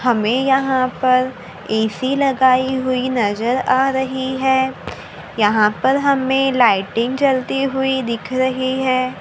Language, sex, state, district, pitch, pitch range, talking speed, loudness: Hindi, female, Maharashtra, Gondia, 260 Hz, 245-265 Hz, 125 wpm, -17 LUFS